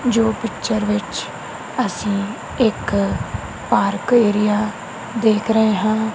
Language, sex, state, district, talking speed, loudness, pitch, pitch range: Punjabi, female, Punjab, Kapurthala, 100 wpm, -19 LUFS, 220 Hz, 210-225 Hz